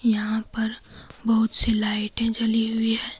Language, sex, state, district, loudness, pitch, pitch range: Hindi, female, Jharkhand, Deoghar, -20 LUFS, 225 Hz, 220-225 Hz